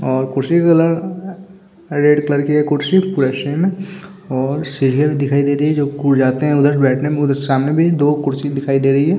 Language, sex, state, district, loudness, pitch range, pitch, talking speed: Hindi, male, Bihar, Vaishali, -15 LUFS, 140-165 Hz, 145 Hz, 150 wpm